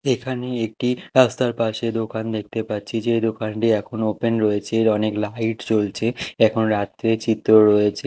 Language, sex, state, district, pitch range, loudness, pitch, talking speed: Bengali, male, Odisha, Khordha, 110-115 Hz, -21 LUFS, 110 Hz, 140 wpm